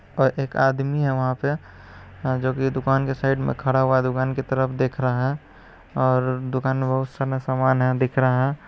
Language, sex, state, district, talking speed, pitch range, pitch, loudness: Hindi, male, Bihar, Araria, 235 wpm, 130-135 Hz, 130 Hz, -22 LUFS